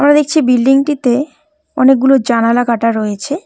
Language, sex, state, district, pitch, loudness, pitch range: Bengali, female, West Bengal, Cooch Behar, 265 Hz, -12 LUFS, 240-295 Hz